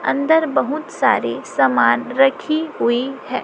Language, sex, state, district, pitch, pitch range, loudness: Hindi, female, Chhattisgarh, Raipur, 270 Hz, 235-310 Hz, -18 LUFS